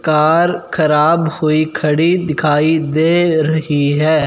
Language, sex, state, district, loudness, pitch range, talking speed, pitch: Hindi, male, Punjab, Fazilka, -14 LUFS, 150-160 Hz, 115 wpm, 155 Hz